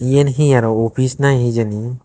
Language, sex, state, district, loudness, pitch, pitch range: Chakma, male, Tripura, Dhalai, -15 LUFS, 125 Hz, 115-140 Hz